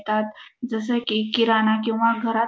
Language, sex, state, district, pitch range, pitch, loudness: Marathi, female, Maharashtra, Dhule, 220-230 Hz, 225 Hz, -22 LUFS